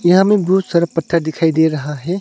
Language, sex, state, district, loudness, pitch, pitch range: Hindi, male, Arunachal Pradesh, Longding, -15 LUFS, 170 Hz, 160-185 Hz